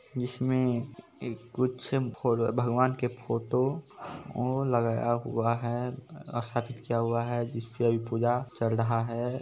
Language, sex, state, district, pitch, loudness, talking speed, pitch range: Maithili, male, Bihar, Supaul, 120 Hz, -30 LUFS, 140 wpm, 115-125 Hz